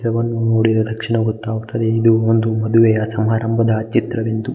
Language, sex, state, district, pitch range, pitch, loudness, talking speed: Kannada, male, Karnataka, Mysore, 110-115 Hz, 115 Hz, -17 LUFS, 130 wpm